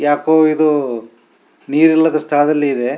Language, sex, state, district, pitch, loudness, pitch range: Kannada, male, Karnataka, Shimoga, 145 Hz, -14 LUFS, 135-155 Hz